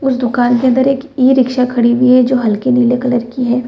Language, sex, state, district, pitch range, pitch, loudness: Hindi, female, Bihar, Samastipur, 245-255 Hz, 250 Hz, -12 LUFS